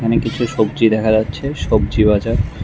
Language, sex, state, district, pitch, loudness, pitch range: Bengali, male, Tripura, West Tripura, 110 Hz, -16 LUFS, 105-115 Hz